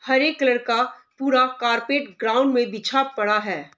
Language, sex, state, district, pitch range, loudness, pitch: Hindi, female, Bihar, Saharsa, 230-270 Hz, -21 LUFS, 255 Hz